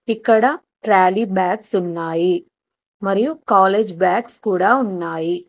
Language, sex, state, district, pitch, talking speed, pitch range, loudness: Telugu, female, Telangana, Hyderabad, 195 Hz, 100 wpm, 180-225 Hz, -18 LUFS